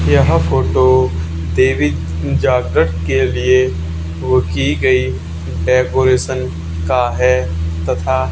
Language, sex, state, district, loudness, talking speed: Hindi, male, Haryana, Charkhi Dadri, -15 LUFS, 95 wpm